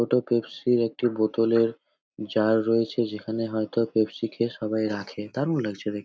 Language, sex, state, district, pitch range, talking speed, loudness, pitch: Bengali, male, West Bengal, North 24 Parganas, 110-115 Hz, 170 wpm, -26 LUFS, 115 Hz